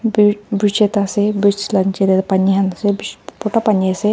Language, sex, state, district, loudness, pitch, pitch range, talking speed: Nagamese, female, Nagaland, Dimapur, -16 LUFS, 205 Hz, 195-210 Hz, 175 wpm